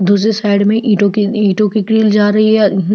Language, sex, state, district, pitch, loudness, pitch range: Hindi, female, Chhattisgarh, Jashpur, 210 Hz, -12 LUFS, 205-215 Hz